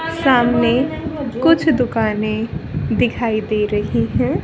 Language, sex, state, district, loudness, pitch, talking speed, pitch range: Hindi, female, Haryana, Charkhi Dadri, -18 LUFS, 235 Hz, 95 wpm, 215-265 Hz